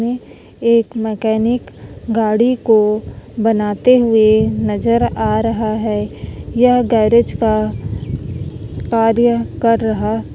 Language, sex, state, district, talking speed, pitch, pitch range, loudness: Hindi, female, Chhattisgarh, Korba, 95 wpm, 225 Hz, 215-235 Hz, -15 LUFS